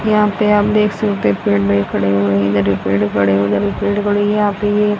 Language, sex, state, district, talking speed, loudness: Hindi, female, Haryana, Rohtak, 285 wpm, -15 LUFS